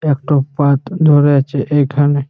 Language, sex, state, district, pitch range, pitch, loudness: Bengali, male, West Bengal, Malda, 140-145 Hz, 145 Hz, -13 LUFS